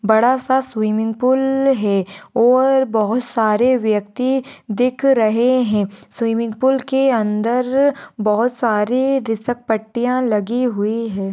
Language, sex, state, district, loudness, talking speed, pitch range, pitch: Hindi, female, Bihar, Jahanabad, -17 LUFS, 120 wpm, 215-260 Hz, 235 Hz